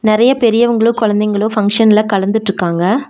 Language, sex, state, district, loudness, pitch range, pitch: Tamil, female, Tamil Nadu, Nilgiris, -12 LUFS, 205-230 Hz, 215 Hz